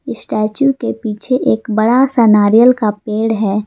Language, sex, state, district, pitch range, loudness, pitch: Hindi, female, Jharkhand, Palamu, 215-245 Hz, -13 LUFS, 220 Hz